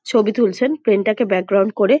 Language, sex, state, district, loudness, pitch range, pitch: Bengali, female, West Bengal, Jhargram, -17 LUFS, 200-245 Hz, 215 Hz